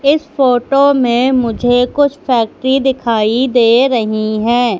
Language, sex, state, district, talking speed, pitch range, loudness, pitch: Hindi, female, Madhya Pradesh, Katni, 125 wpm, 235-265 Hz, -13 LUFS, 245 Hz